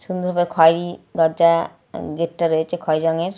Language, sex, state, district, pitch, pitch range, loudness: Bengali, female, West Bengal, North 24 Parganas, 170 Hz, 160-175 Hz, -19 LUFS